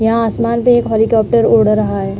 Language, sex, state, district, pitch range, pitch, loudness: Hindi, female, Uttar Pradesh, Budaun, 215-230 Hz, 225 Hz, -13 LUFS